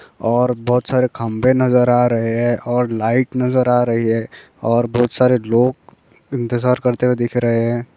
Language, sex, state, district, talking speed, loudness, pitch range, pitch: Hindi, male, Chhattisgarh, Rajnandgaon, 180 wpm, -17 LUFS, 115-125 Hz, 120 Hz